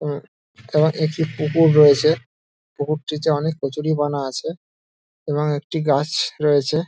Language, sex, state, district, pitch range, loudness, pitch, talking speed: Bengali, male, West Bengal, Dakshin Dinajpur, 140-155 Hz, -19 LUFS, 150 Hz, 115 wpm